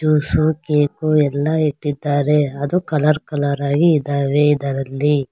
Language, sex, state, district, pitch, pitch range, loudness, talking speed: Kannada, female, Karnataka, Bangalore, 145 Hz, 145-155 Hz, -17 LUFS, 115 wpm